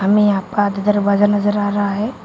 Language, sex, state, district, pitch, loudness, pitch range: Hindi, female, Uttar Pradesh, Shamli, 205 Hz, -16 LUFS, 200-205 Hz